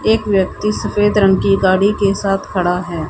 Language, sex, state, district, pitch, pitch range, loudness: Hindi, female, Haryana, Jhajjar, 195 Hz, 185-205 Hz, -15 LUFS